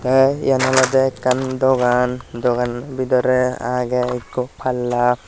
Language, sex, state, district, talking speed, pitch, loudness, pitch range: Chakma, male, Tripura, Dhalai, 115 wpm, 125 Hz, -18 LUFS, 125-130 Hz